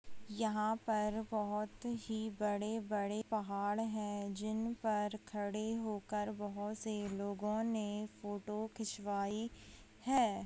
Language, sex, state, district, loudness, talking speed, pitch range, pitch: Hindi, female, Maharashtra, Aurangabad, -40 LUFS, 105 wpm, 205-220 Hz, 210 Hz